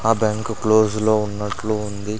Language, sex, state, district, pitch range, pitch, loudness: Telugu, male, Andhra Pradesh, Sri Satya Sai, 105-110 Hz, 110 Hz, -20 LUFS